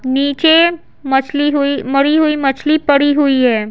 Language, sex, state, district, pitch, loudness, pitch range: Hindi, female, Bihar, Patna, 285 Hz, -13 LUFS, 270-300 Hz